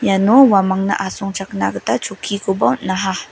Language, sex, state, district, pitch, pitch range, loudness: Garo, female, Meghalaya, West Garo Hills, 195 Hz, 190-200 Hz, -16 LUFS